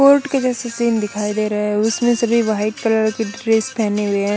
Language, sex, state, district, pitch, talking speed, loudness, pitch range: Hindi, female, Chandigarh, Chandigarh, 220 Hz, 205 wpm, -18 LUFS, 210-235 Hz